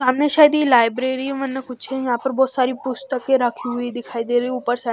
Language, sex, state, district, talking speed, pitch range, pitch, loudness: Hindi, female, Chhattisgarh, Raipur, 220 wpm, 245-265 Hz, 255 Hz, -19 LUFS